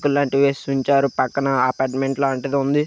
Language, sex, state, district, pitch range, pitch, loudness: Telugu, male, Andhra Pradesh, Krishna, 135-140 Hz, 140 Hz, -20 LUFS